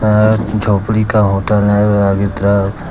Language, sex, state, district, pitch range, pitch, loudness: Hindi, male, Jharkhand, Deoghar, 100-105 Hz, 105 Hz, -13 LUFS